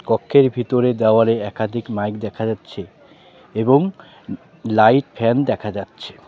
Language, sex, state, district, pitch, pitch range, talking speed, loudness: Bengali, male, West Bengal, Cooch Behar, 115 Hz, 110-130 Hz, 125 wpm, -18 LUFS